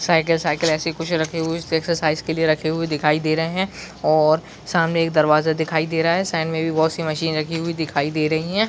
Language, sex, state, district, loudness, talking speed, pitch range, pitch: Hindi, male, Chhattisgarh, Bilaspur, -20 LUFS, 240 wpm, 155-165 Hz, 160 Hz